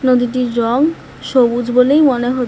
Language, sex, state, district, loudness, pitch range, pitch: Bengali, female, West Bengal, North 24 Parganas, -14 LUFS, 245-260 Hz, 250 Hz